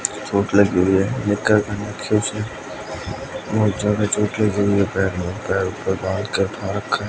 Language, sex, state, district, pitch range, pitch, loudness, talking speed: Hindi, male, Bihar, West Champaran, 95-105 Hz, 105 Hz, -20 LUFS, 120 wpm